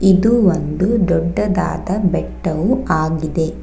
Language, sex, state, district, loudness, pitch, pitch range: Kannada, female, Karnataka, Bangalore, -17 LUFS, 180 Hz, 165-200 Hz